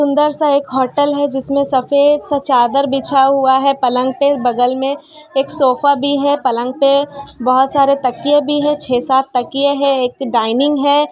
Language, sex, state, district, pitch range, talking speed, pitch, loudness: Hindi, female, Bihar, Kishanganj, 260-285 Hz, 180 wpm, 275 Hz, -14 LUFS